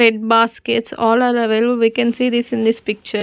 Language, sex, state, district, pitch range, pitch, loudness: English, female, Punjab, Kapurthala, 225-240 Hz, 230 Hz, -16 LUFS